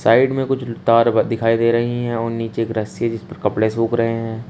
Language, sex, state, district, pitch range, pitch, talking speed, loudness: Hindi, male, Uttar Pradesh, Shamli, 115-120 Hz, 115 Hz, 240 wpm, -19 LUFS